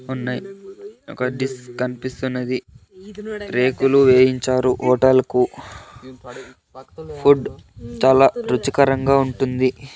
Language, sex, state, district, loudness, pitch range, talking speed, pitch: Telugu, male, Andhra Pradesh, Sri Satya Sai, -18 LUFS, 125-140 Hz, 70 wpm, 130 Hz